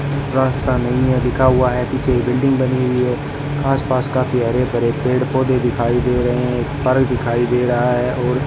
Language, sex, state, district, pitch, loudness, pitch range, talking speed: Hindi, male, Rajasthan, Bikaner, 125 Hz, -17 LUFS, 125-130 Hz, 200 wpm